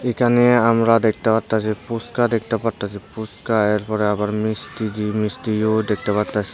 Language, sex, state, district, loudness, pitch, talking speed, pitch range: Bengali, male, Tripura, Unakoti, -20 LUFS, 110 Hz, 130 wpm, 105-115 Hz